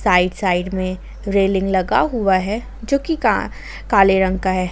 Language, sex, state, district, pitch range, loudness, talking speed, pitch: Hindi, female, Jharkhand, Ranchi, 185-210 Hz, -18 LUFS, 165 wpm, 190 Hz